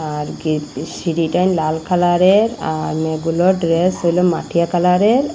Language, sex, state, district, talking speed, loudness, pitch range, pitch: Bengali, female, Assam, Hailakandi, 125 wpm, -17 LUFS, 160-180 Hz, 170 Hz